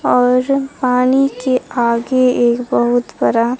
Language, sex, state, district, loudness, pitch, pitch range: Hindi, female, Bihar, Katihar, -15 LUFS, 250 Hz, 240-255 Hz